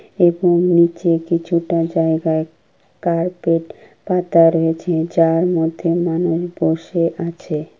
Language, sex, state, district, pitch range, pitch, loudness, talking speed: Bengali, female, West Bengal, Kolkata, 165-175 Hz, 170 Hz, -17 LUFS, 90 wpm